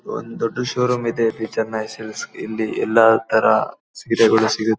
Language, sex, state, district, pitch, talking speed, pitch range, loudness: Kannada, male, Karnataka, Bellary, 110 Hz, 125 wpm, 110-115 Hz, -19 LUFS